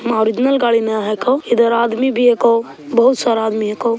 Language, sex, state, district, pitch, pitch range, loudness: Hindi, female, Bihar, Begusarai, 235 Hz, 220-245 Hz, -15 LUFS